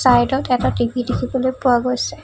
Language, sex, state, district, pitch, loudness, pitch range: Assamese, female, Assam, Kamrup Metropolitan, 250 Hz, -18 LUFS, 240-260 Hz